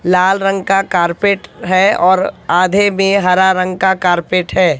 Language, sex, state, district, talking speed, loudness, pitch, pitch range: Hindi, female, Haryana, Jhajjar, 160 wpm, -13 LUFS, 185 Hz, 180-195 Hz